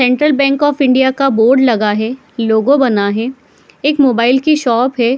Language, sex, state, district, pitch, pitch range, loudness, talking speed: Hindi, female, Jharkhand, Jamtara, 260 Hz, 235-275 Hz, -12 LUFS, 210 wpm